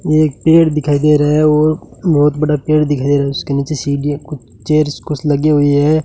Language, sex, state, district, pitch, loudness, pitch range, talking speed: Hindi, male, Rajasthan, Bikaner, 150 Hz, -14 LUFS, 145-155 Hz, 220 wpm